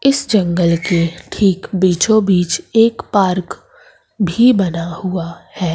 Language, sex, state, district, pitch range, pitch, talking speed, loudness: Hindi, female, Madhya Pradesh, Umaria, 170-220 Hz, 185 Hz, 125 wpm, -15 LUFS